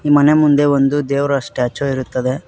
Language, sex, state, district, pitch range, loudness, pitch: Kannada, male, Karnataka, Koppal, 130-145 Hz, -15 LUFS, 140 Hz